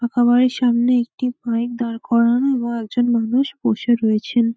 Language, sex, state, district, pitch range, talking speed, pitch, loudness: Bengali, female, West Bengal, Malda, 235-245 Hz, 170 wpm, 240 Hz, -18 LUFS